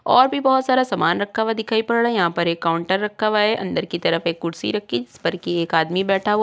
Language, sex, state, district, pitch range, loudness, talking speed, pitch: Hindi, female, Uttar Pradesh, Jyotiba Phule Nagar, 170-225 Hz, -20 LUFS, 280 wpm, 200 Hz